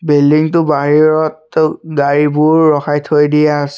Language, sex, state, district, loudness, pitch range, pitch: Assamese, male, Assam, Sonitpur, -12 LUFS, 145-155 Hz, 150 Hz